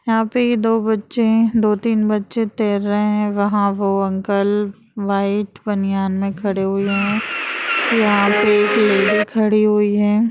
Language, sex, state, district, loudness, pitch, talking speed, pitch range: Hindi, female, Uttar Pradesh, Jalaun, -17 LUFS, 210 Hz, 155 wpm, 200-220 Hz